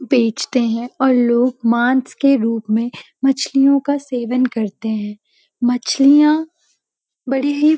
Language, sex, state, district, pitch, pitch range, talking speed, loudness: Hindi, female, Uttarakhand, Uttarkashi, 255 Hz, 235-275 Hz, 130 wpm, -17 LUFS